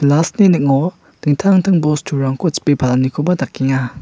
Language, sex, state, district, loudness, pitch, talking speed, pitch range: Garo, male, Meghalaya, West Garo Hills, -15 LUFS, 145 Hz, 105 wpm, 135-175 Hz